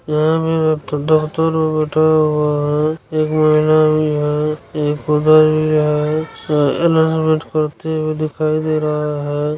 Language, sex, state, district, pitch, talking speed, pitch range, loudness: Hindi, male, Bihar, Saran, 155 Hz, 100 wpm, 150-155 Hz, -16 LUFS